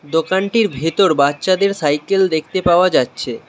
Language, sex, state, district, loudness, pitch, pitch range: Bengali, male, West Bengal, Alipurduar, -16 LUFS, 175 Hz, 155-195 Hz